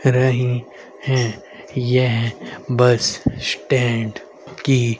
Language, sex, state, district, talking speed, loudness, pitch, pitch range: Hindi, male, Haryana, Rohtak, 70 wpm, -19 LUFS, 125 Hz, 115-130 Hz